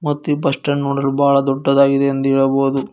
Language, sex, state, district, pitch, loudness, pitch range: Kannada, male, Karnataka, Koppal, 140 Hz, -16 LUFS, 135-140 Hz